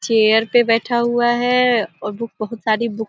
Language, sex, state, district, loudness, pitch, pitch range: Hindi, female, Uttar Pradesh, Deoria, -17 LUFS, 230 Hz, 220-240 Hz